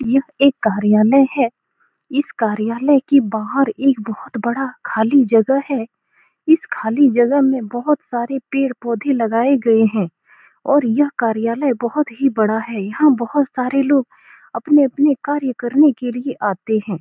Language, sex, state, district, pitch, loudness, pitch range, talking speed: Hindi, female, Bihar, Saran, 255 Hz, -17 LUFS, 225-275 Hz, 155 wpm